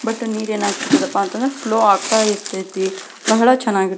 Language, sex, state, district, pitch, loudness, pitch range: Kannada, female, Karnataka, Belgaum, 215 Hz, -18 LUFS, 195-230 Hz